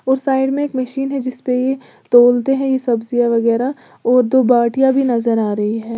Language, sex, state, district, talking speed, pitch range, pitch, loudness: Hindi, female, Uttar Pradesh, Lalitpur, 200 wpm, 235-265 Hz, 250 Hz, -16 LUFS